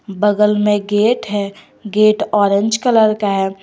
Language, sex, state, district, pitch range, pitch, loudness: Hindi, female, Jharkhand, Garhwa, 200-215 Hz, 210 Hz, -15 LUFS